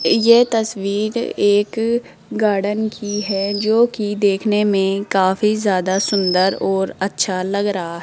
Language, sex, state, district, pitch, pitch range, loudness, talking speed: Hindi, female, Rajasthan, Jaipur, 205 Hz, 195-215 Hz, -18 LUFS, 125 wpm